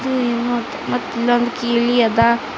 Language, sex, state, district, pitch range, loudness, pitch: Kannada, female, Karnataka, Bidar, 235-245 Hz, -18 LUFS, 240 Hz